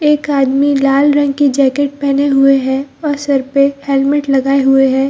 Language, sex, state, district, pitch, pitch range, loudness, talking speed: Hindi, female, Bihar, Gaya, 275 Hz, 270-285 Hz, -12 LUFS, 200 wpm